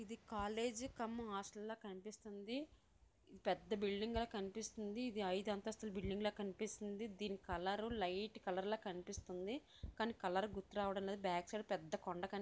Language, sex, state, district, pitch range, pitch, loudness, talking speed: Telugu, female, Andhra Pradesh, Visakhapatnam, 195-220 Hz, 205 Hz, -45 LUFS, 155 wpm